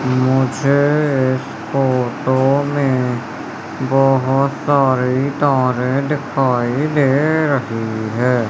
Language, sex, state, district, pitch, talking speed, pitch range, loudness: Hindi, male, Madhya Pradesh, Umaria, 135 Hz, 80 wpm, 125-140 Hz, -16 LUFS